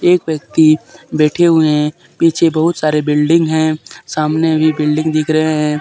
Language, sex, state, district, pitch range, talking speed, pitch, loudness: Hindi, male, Jharkhand, Deoghar, 150-160 Hz, 165 wpm, 155 Hz, -14 LUFS